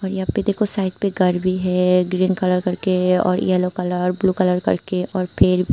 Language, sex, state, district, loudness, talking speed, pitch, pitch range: Hindi, female, Tripura, Unakoti, -19 LUFS, 210 wpm, 185 Hz, 180-190 Hz